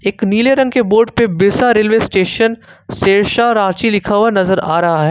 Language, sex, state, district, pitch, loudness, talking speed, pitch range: Hindi, male, Jharkhand, Ranchi, 210 Hz, -13 LUFS, 200 wpm, 195-230 Hz